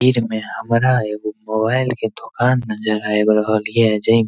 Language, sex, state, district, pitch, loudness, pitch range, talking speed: Maithili, male, Bihar, Darbhanga, 110 Hz, -18 LUFS, 110-120 Hz, 195 wpm